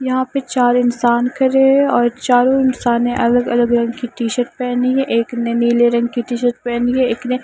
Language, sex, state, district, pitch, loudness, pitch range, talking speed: Hindi, female, Punjab, Fazilka, 245 Hz, -16 LUFS, 240-255 Hz, 215 wpm